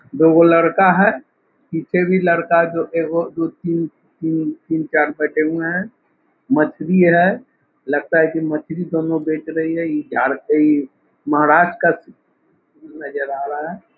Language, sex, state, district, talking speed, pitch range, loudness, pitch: Hindi, male, Bihar, Muzaffarpur, 150 wpm, 155-175 Hz, -17 LUFS, 165 Hz